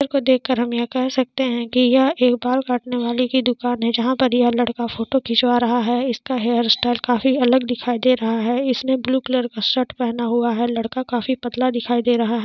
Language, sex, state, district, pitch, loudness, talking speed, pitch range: Hindi, female, Jharkhand, Sahebganj, 245 Hz, -19 LUFS, 240 wpm, 240-255 Hz